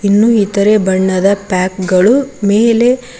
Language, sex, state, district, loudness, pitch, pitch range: Kannada, female, Karnataka, Koppal, -11 LUFS, 200 Hz, 190-230 Hz